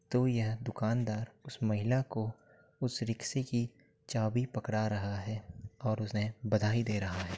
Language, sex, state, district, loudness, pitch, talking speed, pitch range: Hindi, male, Uttar Pradesh, Jyotiba Phule Nagar, -35 LUFS, 110 Hz, 155 wpm, 110-125 Hz